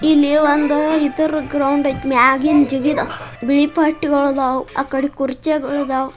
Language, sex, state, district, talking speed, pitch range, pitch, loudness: Kannada, male, Karnataka, Bijapur, 115 wpm, 270-300 Hz, 285 Hz, -17 LUFS